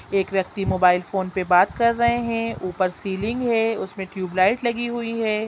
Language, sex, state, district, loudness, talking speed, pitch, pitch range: Hindi, female, Chhattisgarh, Raigarh, -22 LUFS, 185 wpm, 200 Hz, 185-230 Hz